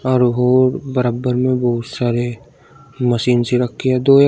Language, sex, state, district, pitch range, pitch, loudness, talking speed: Hindi, male, Uttar Pradesh, Shamli, 120-130 Hz, 125 Hz, -17 LUFS, 170 wpm